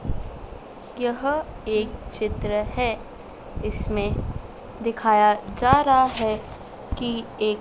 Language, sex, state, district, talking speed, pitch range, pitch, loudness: Hindi, female, Madhya Pradesh, Dhar, 85 wpm, 215-250 Hz, 230 Hz, -24 LUFS